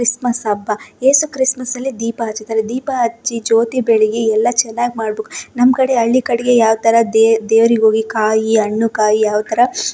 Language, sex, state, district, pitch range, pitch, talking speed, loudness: Kannada, female, Karnataka, Dakshina Kannada, 220-245 Hz, 230 Hz, 155 wpm, -15 LUFS